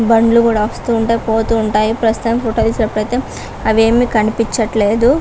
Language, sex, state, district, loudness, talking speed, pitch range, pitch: Telugu, female, Andhra Pradesh, Guntur, -14 LUFS, 150 wpm, 220-230 Hz, 225 Hz